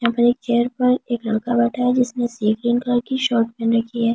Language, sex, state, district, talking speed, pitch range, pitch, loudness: Hindi, female, Delhi, New Delhi, 290 wpm, 230-245 Hz, 240 Hz, -20 LUFS